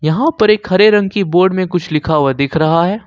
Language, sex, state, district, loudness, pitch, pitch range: Hindi, male, Jharkhand, Ranchi, -13 LUFS, 180 Hz, 155-200 Hz